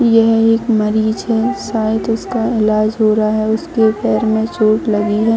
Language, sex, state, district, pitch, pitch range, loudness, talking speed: Hindi, female, Jharkhand, Jamtara, 220 Hz, 215-225 Hz, -15 LUFS, 180 wpm